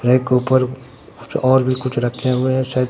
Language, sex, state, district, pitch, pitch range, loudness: Hindi, male, Bihar, Katihar, 130 Hz, 125-130 Hz, -18 LUFS